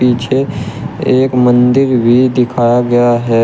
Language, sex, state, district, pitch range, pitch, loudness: Hindi, male, Uttar Pradesh, Shamli, 120-130 Hz, 125 Hz, -11 LUFS